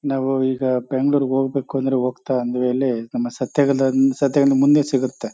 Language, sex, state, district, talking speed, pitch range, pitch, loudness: Kannada, male, Karnataka, Chamarajanagar, 145 wpm, 125-135 Hz, 135 Hz, -19 LUFS